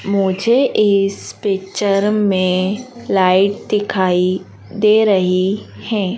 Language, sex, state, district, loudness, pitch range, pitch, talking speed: Hindi, female, Madhya Pradesh, Dhar, -16 LUFS, 185-210 Hz, 200 Hz, 85 wpm